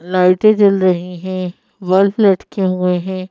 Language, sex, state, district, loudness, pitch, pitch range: Hindi, female, Madhya Pradesh, Bhopal, -15 LUFS, 185 Hz, 180-195 Hz